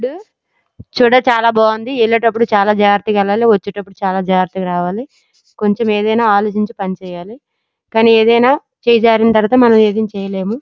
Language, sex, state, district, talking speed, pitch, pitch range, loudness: Telugu, female, Andhra Pradesh, Srikakulam, 125 wpm, 220 Hz, 200-230 Hz, -13 LUFS